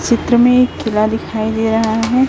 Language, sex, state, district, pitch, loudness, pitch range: Hindi, female, Chhattisgarh, Raipur, 225 Hz, -14 LUFS, 220-245 Hz